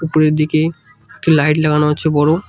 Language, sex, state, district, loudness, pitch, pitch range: Bengali, male, West Bengal, Cooch Behar, -15 LUFS, 155 Hz, 150-155 Hz